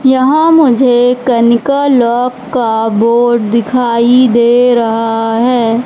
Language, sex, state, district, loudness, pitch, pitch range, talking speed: Hindi, female, Madhya Pradesh, Katni, -10 LUFS, 245 Hz, 235-255 Hz, 100 wpm